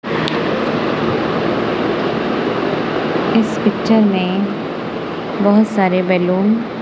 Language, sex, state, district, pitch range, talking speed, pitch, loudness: Hindi, female, Punjab, Kapurthala, 185-215 Hz, 60 wpm, 200 Hz, -16 LUFS